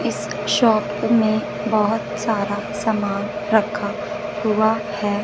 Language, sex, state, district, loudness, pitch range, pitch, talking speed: Hindi, female, Punjab, Fazilka, -20 LUFS, 205-215 Hz, 210 Hz, 105 wpm